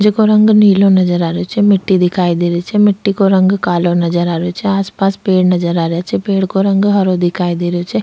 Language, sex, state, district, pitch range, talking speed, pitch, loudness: Rajasthani, female, Rajasthan, Churu, 175-200 Hz, 260 wpm, 185 Hz, -13 LUFS